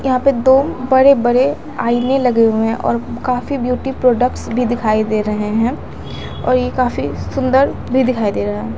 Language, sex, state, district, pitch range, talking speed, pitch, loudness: Hindi, female, Bihar, Katihar, 230-260 Hz, 180 wpm, 250 Hz, -15 LUFS